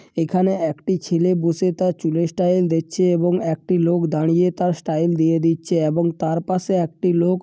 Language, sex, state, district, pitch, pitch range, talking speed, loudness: Bengali, male, West Bengal, Dakshin Dinajpur, 170 Hz, 165-180 Hz, 170 wpm, -19 LUFS